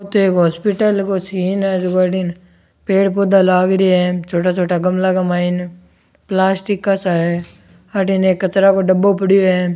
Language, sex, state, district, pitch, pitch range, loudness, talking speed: Rajasthani, male, Rajasthan, Churu, 185 Hz, 180-195 Hz, -15 LUFS, 170 wpm